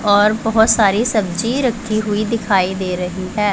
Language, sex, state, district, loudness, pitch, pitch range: Hindi, female, Punjab, Pathankot, -16 LUFS, 210 Hz, 195-225 Hz